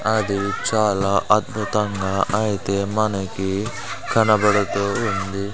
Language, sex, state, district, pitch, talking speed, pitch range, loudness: Telugu, male, Andhra Pradesh, Sri Satya Sai, 100 Hz, 65 wpm, 100-110 Hz, -21 LUFS